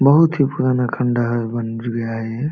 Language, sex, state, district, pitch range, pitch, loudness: Hindi, male, Bihar, Jamui, 115-135 Hz, 120 Hz, -19 LUFS